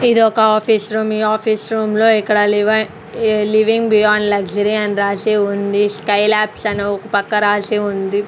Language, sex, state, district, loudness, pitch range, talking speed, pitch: Telugu, female, Andhra Pradesh, Sri Satya Sai, -15 LUFS, 205-215 Hz, 165 wpm, 210 Hz